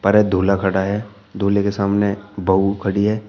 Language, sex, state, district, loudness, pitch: Hindi, male, Uttar Pradesh, Shamli, -19 LUFS, 100 Hz